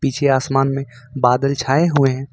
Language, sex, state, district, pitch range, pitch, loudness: Hindi, male, Jharkhand, Ranchi, 130-140 Hz, 135 Hz, -17 LUFS